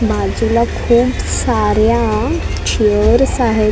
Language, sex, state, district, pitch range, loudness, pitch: Marathi, female, Maharashtra, Mumbai Suburban, 215-240 Hz, -14 LUFS, 230 Hz